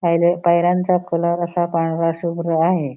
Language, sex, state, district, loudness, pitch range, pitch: Marathi, female, Maharashtra, Pune, -18 LUFS, 165-175 Hz, 170 Hz